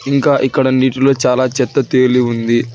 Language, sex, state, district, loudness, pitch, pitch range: Telugu, male, Telangana, Hyderabad, -13 LUFS, 130 Hz, 125-135 Hz